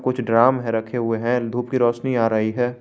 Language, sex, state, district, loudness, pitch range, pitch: Hindi, male, Jharkhand, Garhwa, -20 LUFS, 115-125 Hz, 120 Hz